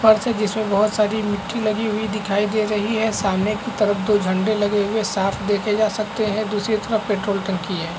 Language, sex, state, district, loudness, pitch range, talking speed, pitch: Hindi, male, Bihar, Saharsa, -21 LUFS, 205-215 Hz, 210 wpm, 210 Hz